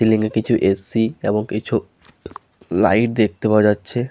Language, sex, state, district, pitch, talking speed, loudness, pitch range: Bengali, male, West Bengal, Malda, 110 Hz, 145 wpm, -18 LUFS, 105-115 Hz